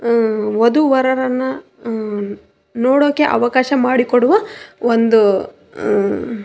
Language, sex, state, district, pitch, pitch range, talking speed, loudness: Kannada, female, Karnataka, Raichur, 240 Hz, 225-260 Hz, 65 wpm, -15 LUFS